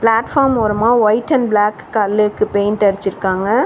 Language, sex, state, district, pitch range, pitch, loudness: Tamil, female, Tamil Nadu, Chennai, 205-230 Hz, 215 Hz, -15 LUFS